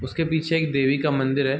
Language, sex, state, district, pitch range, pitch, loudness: Hindi, male, Chhattisgarh, Raigarh, 135-160 Hz, 140 Hz, -22 LUFS